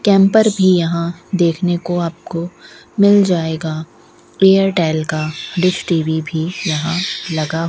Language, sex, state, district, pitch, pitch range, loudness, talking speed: Hindi, female, Rajasthan, Bikaner, 170 Hz, 160-185 Hz, -16 LUFS, 125 wpm